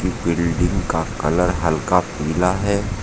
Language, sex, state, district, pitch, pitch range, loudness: Hindi, male, Uttar Pradesh, Saharanpur, 90 Hz, 85-95 Hz, -20 LUFS